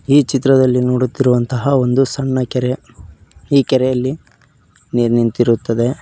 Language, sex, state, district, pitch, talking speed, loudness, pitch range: Kannada, male, Karnataka, Koppal, 125 Hz, 100 wpm, -15 LUFS, 120-135 Hz